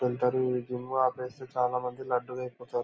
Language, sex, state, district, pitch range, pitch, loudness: Telugu, male, Andhra Pradesh, Anantapur, 125-130 Hz, 125 Hz, -31 LUFS